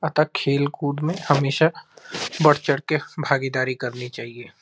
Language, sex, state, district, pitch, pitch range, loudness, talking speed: Hindi, male, Uttar Pradesh, Deoria, 145 Hz, 130-155 Hz, -22 LUFS, 130 wpm